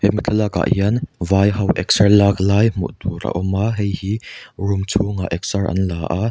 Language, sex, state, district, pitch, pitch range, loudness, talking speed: Mizo, male, Mizoram, Aizawl, 100 Hz, 95-105 Hz, -18 LUFS, 200 wpm